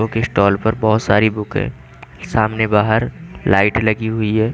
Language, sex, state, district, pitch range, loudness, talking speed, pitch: Hindi, male, Chandigarh, Chandigarh, 105-110 Hz, -17 LUFS, 170 wpm, 110 Hz